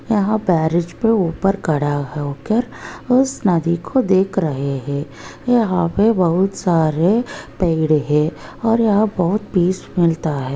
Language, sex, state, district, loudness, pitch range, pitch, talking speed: Hindi, female, Maharashtra, Nagpur, -18 LUFS, 155-215 Hz, 180 Hz, 130 wpm